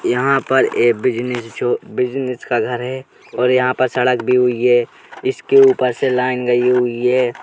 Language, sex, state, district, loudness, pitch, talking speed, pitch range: Hindi, male, Uttar Pradesh, Jalaun, -16 LUFS, 125 Hz, 185 wpm, 125-130 Hz